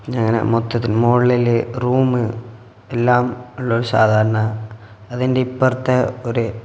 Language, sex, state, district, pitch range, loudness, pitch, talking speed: Malayalam, male, Kerala, Kasaragod, 110-125 Hz, -18 LUFS, 120 Hz, 100 wpm